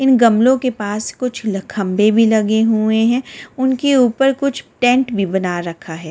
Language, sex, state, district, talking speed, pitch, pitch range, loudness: Hindi, female, Delhi, New Delhi, 175 wpm, 225 Hz, 205-255 Hz, -16 LUFS